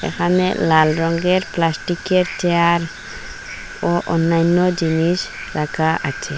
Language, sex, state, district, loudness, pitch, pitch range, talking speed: Bengali, female, Assam, Hailakandi, -18 LUFS, 170 Hz, 165-185 Hz, 95 wpm